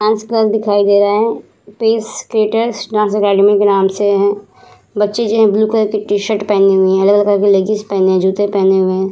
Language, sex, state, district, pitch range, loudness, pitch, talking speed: Hindi, female, Bihar, Vaishali, 200-215 Hz, -13 LUFS, 205 Hz, 230 wpm